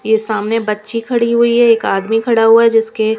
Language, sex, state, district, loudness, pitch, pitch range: Hindi, female, Punjab, Kapurthala, -13 LUFS, 225 Hz, 220-230 Hz